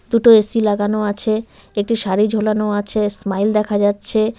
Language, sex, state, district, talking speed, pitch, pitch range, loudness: Bengali, female, West Bengal, Cooch Behar, 150 wpm, 215 Hz, 205-220 Hz, -16 LUFS